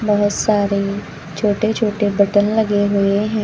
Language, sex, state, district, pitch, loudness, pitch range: Hindi, female, Uttar Pradesh, Lucknow, 205 Hz, -17 LUFS, 200-210 Hz